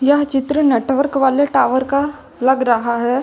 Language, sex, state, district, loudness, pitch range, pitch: Hindi, female, Uttar Pradesh, Lucknow, -16 LUFS, 255-285 Hz, 270 Hz